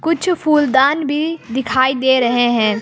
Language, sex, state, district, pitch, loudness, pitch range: Hindi, female, Jharkhand, Palamu, 265 Hz, -15 LUFS, 250-305 Hz